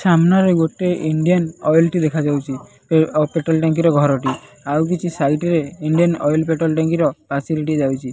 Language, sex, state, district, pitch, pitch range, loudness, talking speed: Odia, male, Odisha, Nuapada, 160 Hz, 150-165 Hz, -17 LUFS, 140 wpm